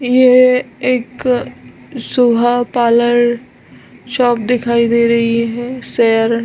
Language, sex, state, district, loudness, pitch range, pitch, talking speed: Hindi, female, Chhattisgarh, Balrampur, -13 LUFS, 235-250 Hz, 240 Hz, 100 wpm